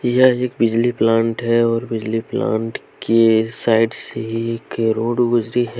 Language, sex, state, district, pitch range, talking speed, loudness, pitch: Hindi, male, Jharkhand, Deoghar, 115-120 Hz, 155 wpm, -18 LUFS, 115 Hz